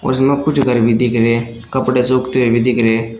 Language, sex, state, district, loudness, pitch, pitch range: Hindi, male, Uttar Pradesh, Shamli, -14 LUFS, 125 Hz, 115-130 Hz